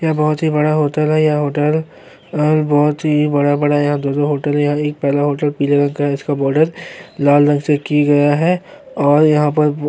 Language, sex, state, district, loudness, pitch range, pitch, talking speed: Hindi, male, Uttarakhand, Tehri Garhwal, -15 LUFS, 145-150 Hz, 145 Hz, 200 wpm